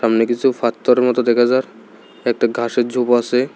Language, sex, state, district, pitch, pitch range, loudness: Bengali, male, Tripura, South Tripura, 120 Hz, 120-125 Hz, -17 LUFS